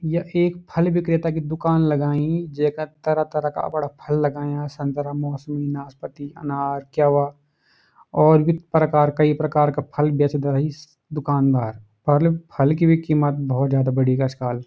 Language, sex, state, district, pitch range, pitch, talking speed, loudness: Garhwali, male, Uttarakhand, Uttarkashi, 140-155 Hz, 150 Hz, 160 wpm, -21 LUFS